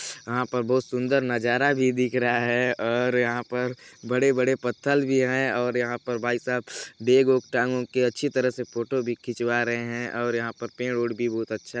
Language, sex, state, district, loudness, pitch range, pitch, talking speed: Hindi, male, Chhattisgarh, Balrampur, -25 LUFS, 120-125 Hz, 125 Hz, 220 wpm